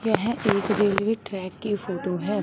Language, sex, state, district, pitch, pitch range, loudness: Hindi, male, Punjab, Fazilka, 205 Hz, 190-215 Hz, -25 LUFS